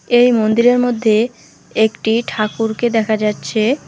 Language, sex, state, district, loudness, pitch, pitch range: Bengali, female, West Bengal, Alipurduar, -15 LUFS, 225 Hz, 220-240 Hz